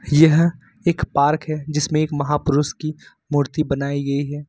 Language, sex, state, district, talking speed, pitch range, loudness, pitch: Hindi, male, Jharkhand, Ranchi, 160 wpm, 140-155 Hz, -20 LUFS, 150 Hz